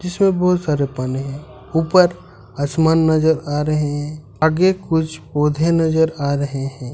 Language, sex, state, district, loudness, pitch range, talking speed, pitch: Hindi, male, Jharkhand, Ranchi, -18 LUFS, 140-165 Hz, 155 wpm, 155 Hz